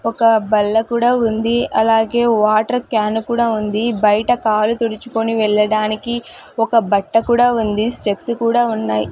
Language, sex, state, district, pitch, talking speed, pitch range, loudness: Telugu, female, Andhra Pradesh, Sri Satya Sai, 225 Hz, 130 wpm, 215-235 Hz, -16 LUFS